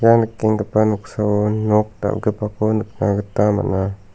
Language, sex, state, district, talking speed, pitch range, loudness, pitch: Garo, male, Meghalaya, South Garo Hills, 115 wpm, 105-110 Hz, -19 LUFS, 105 Hz